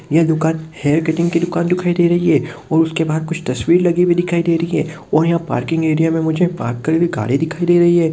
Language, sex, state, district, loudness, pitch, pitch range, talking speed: Hindi, male, Rajasthan, Nagaur, -16 LUFS, 165 Hz, 160-170 Hz, 220 wpm